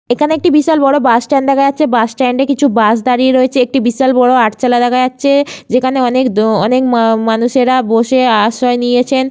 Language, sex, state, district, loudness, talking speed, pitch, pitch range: Bengali, female, West Bengal, Malda, -11 LUFS, 175 wpm, 255 Hz, 240-270 Hz